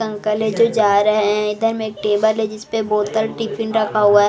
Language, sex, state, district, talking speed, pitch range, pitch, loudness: Hindi, female, Maharashtra, Mumbai Suburban, 250 wpm, 210-220 Hz, 215 Hz, -18 LUFS